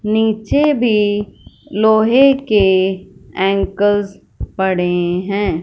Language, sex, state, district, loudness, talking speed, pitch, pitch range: Hindi, female, Punjab, Fazilka, -15 LUFS, 75 wpm, 205 Hz, 190-220 Hz